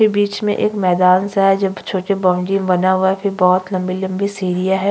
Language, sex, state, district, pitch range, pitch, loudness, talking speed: Hindi, female, Chhattisgarh, Sukma, 185-200 Hz, 190 Hz, -16 LUFS, 230 wpm